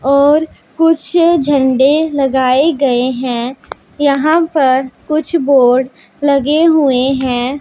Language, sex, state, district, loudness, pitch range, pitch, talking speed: Hindi, female, Punjab, Pathankot, -12 LUFS, 260-310 Hz, 280 Hz, 100 wpm